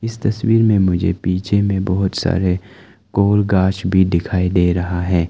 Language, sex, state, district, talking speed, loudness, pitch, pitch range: Hindi, male, Arunachal Pradesh, Lower Dibang Valley, 170 wpm, -17 LUFS, 95 Hz, 90-105 Hz